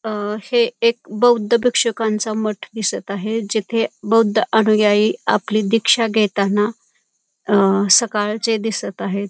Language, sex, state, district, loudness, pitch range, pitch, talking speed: Marathi, female, Maharashtra, Pune, -17 LUFS, 210-225 Hz, 220 Hz, 115 wpm